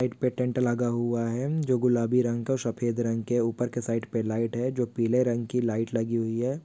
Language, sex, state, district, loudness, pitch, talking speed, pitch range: Hindi, male, Andhra Pradesh, Visakhapatnam, -27 LUFS, 120 Hz, 245 wpm, 115-125 Hz